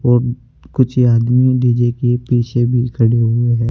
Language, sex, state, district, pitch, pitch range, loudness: Hindi, male, Uttar Pradesh, Saharanpur, 120 Hz, 120-125 Hz, -15 LUFS